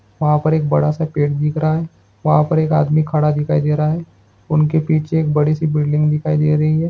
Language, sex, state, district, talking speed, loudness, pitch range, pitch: Hindi, male, Andhra Pradesh, Srikakulam, 270 wpm, -17 LUFS, 150-155 Hz, 150 Hz